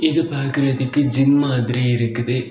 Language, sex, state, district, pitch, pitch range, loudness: Tamil, male, Tamil Nadu, Kanyakumari, 135 Hz, 125-140 Hz, -18 LUFS